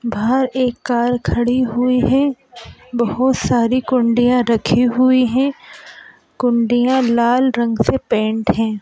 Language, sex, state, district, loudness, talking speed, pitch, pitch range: Hindi, male, Madhya Pradesh, Bhopal, -16 LUFS, 120 wpm, 245 Hz, 235-255 Hz